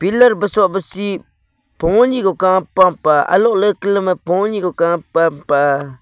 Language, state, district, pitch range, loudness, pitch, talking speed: Nyishi, Arunachal Pradesh, Papum Pare, 165-200 Hz, -15 LUFS, 185 Hz, 130 wpm